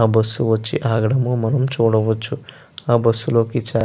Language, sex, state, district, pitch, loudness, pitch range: Telugu, male, Andhra Pradesh, Chittoor, 115 Hz, -18 LUFS, 110-130 Hz